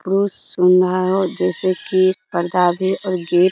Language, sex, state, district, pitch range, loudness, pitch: Hindi, female, Bihar, Kishanganj, 180-190 Hz, -18 LUFS, 185 Hz